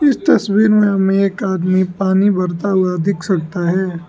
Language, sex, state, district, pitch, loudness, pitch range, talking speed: Hindi, male, Arunachal Pradesh, Lower Dibang Valley, 190 Hz, -15 LUFS, 185-200 Hz, 175 wpm